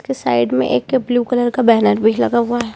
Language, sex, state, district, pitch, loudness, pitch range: Hindi, female, Jharkhand, Jamtara, 235 Hz, -15 LUFS, 210-245 Hz